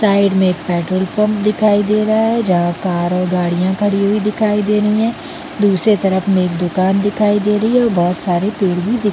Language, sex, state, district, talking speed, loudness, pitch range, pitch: Hindi, female, Chhattisgarh, Bilaspur, 215 wpm, -15 LUFS, 180-210 Hz, 205 Hz